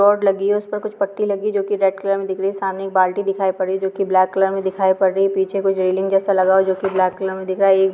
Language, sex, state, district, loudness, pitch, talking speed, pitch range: Hindi, female, Chhattisgarh, Sukma, -18 LUFS, 195 Hz, 330 wpm, 190-195 Hz